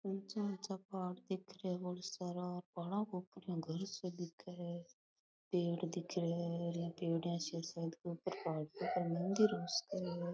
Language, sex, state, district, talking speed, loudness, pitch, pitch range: Rajasthani, female, Rajasthan, Nagaur, 70 wpm, -42 LUFS, 180 Hz, 170-190 Hz